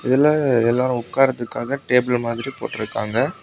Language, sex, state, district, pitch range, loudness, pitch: Tamil, male, Tamil Nadu, Kanyakumari, 120-135 Hz, -20 LUFS, 125 Hz